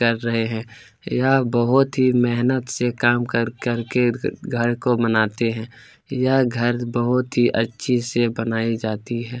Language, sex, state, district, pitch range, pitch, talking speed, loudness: Hindi, male, Chhattisgarh, Kabirdham, 115-125 Hz, 120 Hz, 160 wpm, -21 LUFS